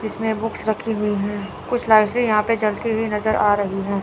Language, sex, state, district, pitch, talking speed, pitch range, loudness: Hindi, female, Chandigarh, Chandigarh, 215 Hz, 240 wpm, 205-225 Hz, -20 LUFS